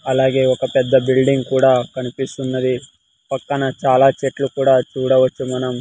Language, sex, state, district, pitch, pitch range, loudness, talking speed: Telugu, male, Andhra Pradesh, Sri Satya Sai, 130 Hz, 130-135 Hz, -17 LUFS, 125 wpm